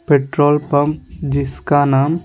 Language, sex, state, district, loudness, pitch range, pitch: Hindi, male, Bihar, Patna, -16 LUFS, 140-150 Hz, 145 Hz